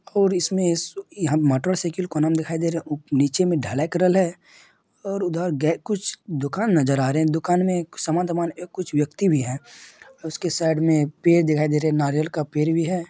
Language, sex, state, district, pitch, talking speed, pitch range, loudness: Hindi, male, Bihar, Madhepura, 165 Hz, 225 wpm, 150-180 Hz, -22 LUFS